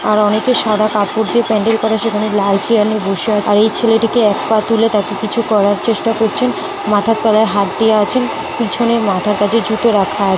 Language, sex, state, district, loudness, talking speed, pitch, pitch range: Bengali, female, West Bengal, North 24 Parganas, -14 LUFS, 210 wpm, 215 Hz, 205-225 Hz